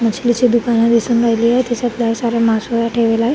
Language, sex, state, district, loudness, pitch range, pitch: Marathi, female, Maharashtra, Sindhudurg, -15 LUFS, 230-240 Hz, 235 Hz